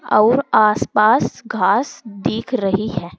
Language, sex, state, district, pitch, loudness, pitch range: Hindi, female, Uttar Pradesh, Saharanpur, 215 Hz, -17 LUFS, 200-230 Hz